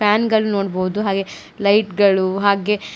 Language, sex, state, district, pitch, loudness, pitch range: Kannada, female, Karnataka, Koppal, 200 Hz, -18 LUFS, 195-210 Hz